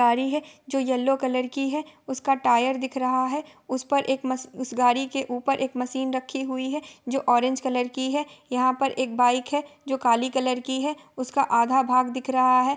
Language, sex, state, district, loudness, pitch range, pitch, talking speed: Hindi, female, Bihar, Gopalganj, -25 LUFS, 255-275 Hz, 260 Hz, 215 wpm